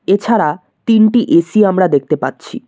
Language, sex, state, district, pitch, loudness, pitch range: Bengali, male, West Bengal, Cooch Behar, 210 Hz, -13 LUFS, 160-235 Hz